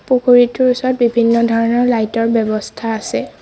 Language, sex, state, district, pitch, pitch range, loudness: Assamese, female, Assam, Sonitpur, 235 Hz, 230-245 Hz, -14 LUFS